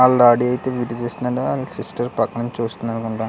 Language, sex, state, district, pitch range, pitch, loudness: Telugu, male, Andhra Pradesh, Krishna, 115-125 Hz, 120 Hz, -20 LUFS